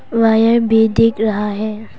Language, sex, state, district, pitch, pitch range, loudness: Hindi, female, Arunachal Pradesh, Papum Pare, 220 Hz, 215-230 Hz, -14 LUFS